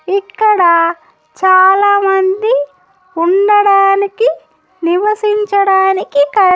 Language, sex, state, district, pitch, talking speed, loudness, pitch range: Telugu, female, Andhra Pradesh, Annamaya, 385 Hz, 45 wpm, -11 LUFS, 365-405 Hz